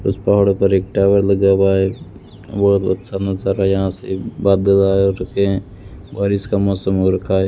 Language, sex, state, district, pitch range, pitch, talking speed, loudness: Hindi, male, Rajasthan, Bikaner, 95-100 Hz, 95 Hz, 185 wpm, -16 LUFS